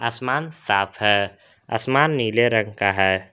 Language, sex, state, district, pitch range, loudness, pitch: Hindi, male, Jharkhand, Garhwa, 100-130 Hz, -20 LUFS, 110 Hz